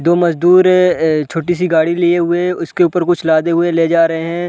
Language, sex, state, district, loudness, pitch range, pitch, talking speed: Hindi, male, Chhattisgarh, Raigarh, -13 LUFS, 165-175 Hz, 170 Hz, 240 wpm